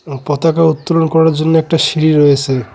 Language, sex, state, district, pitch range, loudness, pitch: Bengali, male, West Bengal, Cooch Behar, 145-160 Hz, -12 LUFS, 155 Hz